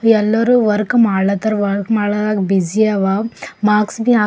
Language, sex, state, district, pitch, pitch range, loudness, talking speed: Kannada, female, Karnataka, Bidar, 210 Hz, 200-225 Hz, -15 LUFS, 155 wpm